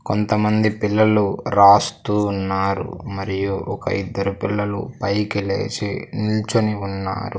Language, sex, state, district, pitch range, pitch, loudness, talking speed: Telugu, male, Andhra Pradesh, Sri Satya Sai, 100-105 Hz, 100 Hz, -20 LUFS, 95 wpm